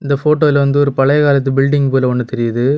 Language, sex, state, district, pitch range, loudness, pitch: Tamil, male, Tamil Nadu, Kanyakumari, 135-145 Hz, -13 LUFS, 140 Hz